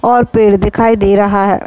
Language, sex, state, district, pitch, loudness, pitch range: Hindi, female, Chhattisgarh, Raigarh, 210 Hz, -10 LUFS, 200-225 Hz